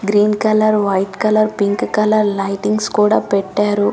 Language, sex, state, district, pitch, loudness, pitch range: Telugu, female, Telangana, Karimnagar, 205 Hz, -15 LUFS, 200-215 Hz